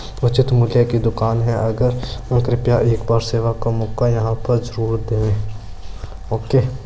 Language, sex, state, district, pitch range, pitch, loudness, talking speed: Hindi, male, Rajasthan, Churu, 110-120 Hz, 115 Hz, -18 LUFS, 150 wpm